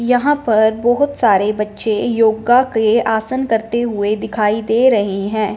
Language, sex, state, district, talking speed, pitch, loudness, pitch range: Hindi, female, Punjab, Fazilka, 150 wpm, 220 Hz, -15 LUFS, 215-240 Hz